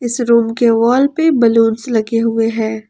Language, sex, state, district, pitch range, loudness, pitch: Hindi, female, Jharkhand, Palamu, 225-240 Hz, -13 LUFS, 230 Hz